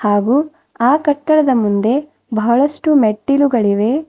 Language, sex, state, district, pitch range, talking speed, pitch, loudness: Kannada, female, Karnataka, Bidar, 220-295 Hz, 90 wpm, 270 Hz, -14 LUFS